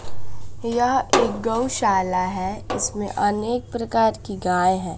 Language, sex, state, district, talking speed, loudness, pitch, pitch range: Hindi, female, Bihar, West Champaran, 120 wpm, -22 LUFS, 200 Hz, 185-230 Hz